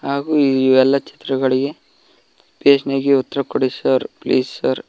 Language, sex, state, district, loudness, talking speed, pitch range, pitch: Kannada, male, Karnataka, Koppal, -17 LUFS, 145 wpm, 130-140 Hz, 135 Hz